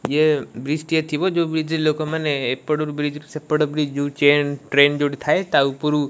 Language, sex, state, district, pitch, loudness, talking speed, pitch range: Odia, male, Odisha, Malkangiri, 150 Hz, -20 LUFS, 195 wpm, 145-155 Hz